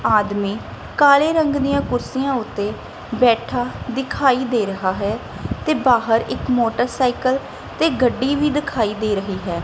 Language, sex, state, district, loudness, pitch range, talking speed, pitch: Punjabi, female, Punjab, Kapurthala, -19 LUFS, 215-275 Hz, 135 wpm, 245 Hz